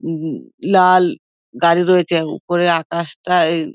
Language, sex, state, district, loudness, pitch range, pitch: Bengali, female, West Bengal, Dakshin Dinajpur, -16 LUFS, 165-180 Hz, 170 Hz